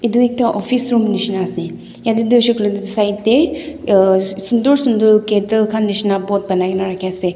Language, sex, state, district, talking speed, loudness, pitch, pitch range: Nagamese, female, Nagaland, Dimapur, 170 wpm, -15 LUFS, 210 Hz, 195-235 Hz